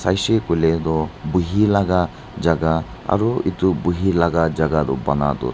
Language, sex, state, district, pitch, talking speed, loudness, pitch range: Nagamese, male, Nagaland, Dimapur, 85 Hz, 130 wpm, -19 LUFS, 80-95 Hz